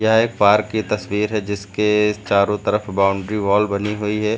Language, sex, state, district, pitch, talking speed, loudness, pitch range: Hindi, male, Uttar Pradesh, Lucknow, 105 Hz, 190 wpm, -19 LUFS, 100-105 Hz